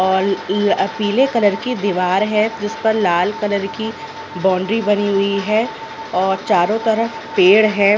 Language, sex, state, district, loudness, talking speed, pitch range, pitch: Hindi, female, Chhattisgarh, Raigarh, -17 LUFS, 160 wpm, 195-225 Hz, 210 Hz